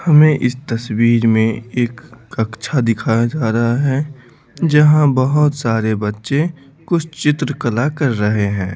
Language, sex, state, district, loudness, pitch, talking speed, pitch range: Hindi, male, Bihar, Patna, -16 LUFS, 125 Hz, 135 wpm, 115-150 Hz